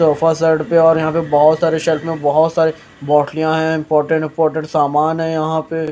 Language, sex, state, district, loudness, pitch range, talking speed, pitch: Hindi, male, Maharashtra, Mumbai Suburban, -15 LUFS, 155-160 Hz, 215 wpm, 160 Hz